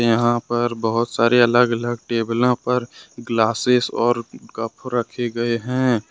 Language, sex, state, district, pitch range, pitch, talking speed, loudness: Hindi, male, Jharkhand, Ranchi, 115-125 Hz, 120 Hz, 135 wpm, -20 LUFS